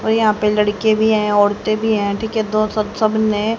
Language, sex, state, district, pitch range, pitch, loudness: Hindi, female, Haryana, Charkhi Dadri, 210-220 Hz, 215 Hz, -17 LUFS